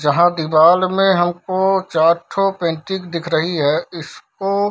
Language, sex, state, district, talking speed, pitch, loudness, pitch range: Hindi, male, Bihar, Darbhanga, 140 wpm, 175 Hz, -17 LUFS, 165-190 Hz